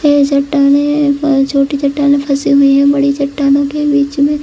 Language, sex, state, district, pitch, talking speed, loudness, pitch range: Hindi, female, Chhattisgarh, Bilaspur, 280 Hz, 230 wpm, -11 LUFS, 280-290 Hz